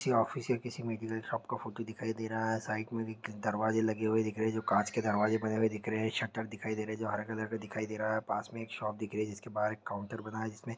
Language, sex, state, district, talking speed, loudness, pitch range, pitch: Hindi, male, Chhattisgarh, Sukma, 300 wpm, -35 LUFS, 110-115 Hz, 110 Hz